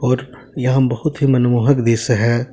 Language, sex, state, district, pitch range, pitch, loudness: Hindi, male, Jharkhand, Deoghar, 120-130 Hz, 125 Hz, -16 LUFS